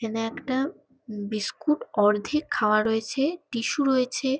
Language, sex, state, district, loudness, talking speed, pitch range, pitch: Bengali, female, West Bengal, Kolkata, -26 LUFS, 110 wpm, 215-280 Hz, 255 Hz